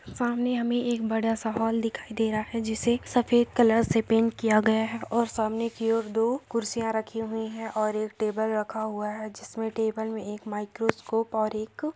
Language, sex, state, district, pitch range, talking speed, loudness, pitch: Hindi, female, Jharkhand, Sahebganj, 220-230 Hz, 205 wpm, -27 LUFS, 225 Hz